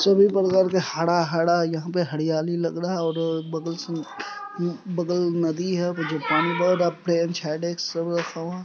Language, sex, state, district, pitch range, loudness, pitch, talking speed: Hindi, male, Bihar, Supaul, 165-180 Hz, -24 LUFS, 170 Hz, 155 wpm